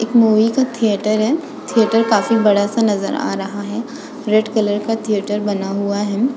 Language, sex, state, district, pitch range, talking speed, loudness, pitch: Hindi, female, Uttar Pradesh, Budaun, 205-230 Hz, 180 wpm, -17 LUFS, 215 Hz